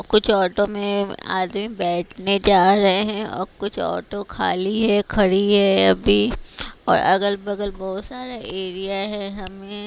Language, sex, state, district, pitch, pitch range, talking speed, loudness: Hindi, female, Haryana, Rohtak, 200 Hz, 190-205 Hz, 145 wpm, -19 LUFS